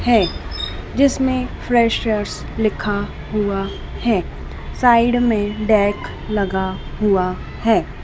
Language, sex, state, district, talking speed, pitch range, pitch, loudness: Hindi, female, Madhya Pradesh, Dhar, 90 wpm, 200-235 Hz, 215 Hz, -19 LUFS